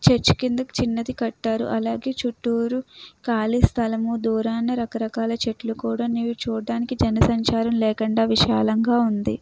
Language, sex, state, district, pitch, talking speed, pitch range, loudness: Telugu, female, Andhra Pradesh, Krishna, 230 Hz, 120 wpm, 225-235 Hz, -22 LUFS